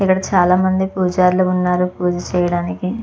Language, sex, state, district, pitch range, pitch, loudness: Telugu, female, Andhra Pradesh, Chittoor, 180-185 Hz, 180 Hz, -16 LUFS